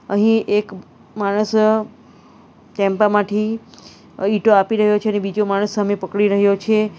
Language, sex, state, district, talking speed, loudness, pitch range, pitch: Gujarati, female, Gujarat, Valsad, 135 wpm, -17 LUFS, 200-215 Hz, 210 Hz